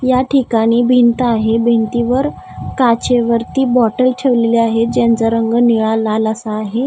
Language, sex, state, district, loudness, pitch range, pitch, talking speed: Marathi, female, Maharashtra, Gondia, -14 LUFS, 225-250 Hz, 235 Hz, 130 wpm